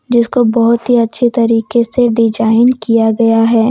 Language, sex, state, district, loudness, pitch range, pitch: Hindi, female, Jharkhand, Deoghar, -11 LUFS, 225-240 Hz, 230 Hz